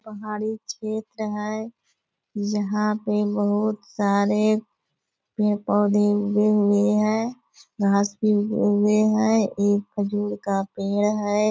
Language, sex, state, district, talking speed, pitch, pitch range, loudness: Hindi, female, Bihar, Purnia, 110 wpm, 210 Hz, 205-215 Hz, -23 LUFS